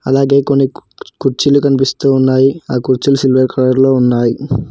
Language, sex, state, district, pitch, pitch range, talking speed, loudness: Telugu, male, Telangana, Hyderabad, 135 Hz, 130-140 Hz, 155 wpm, -12 LUFS